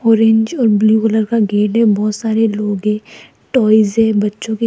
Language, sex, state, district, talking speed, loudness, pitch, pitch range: Hindi, female, Rajasthan, Jaipur, 195 wpm, -14 LUFS, 220 Hz, 210-225 Hz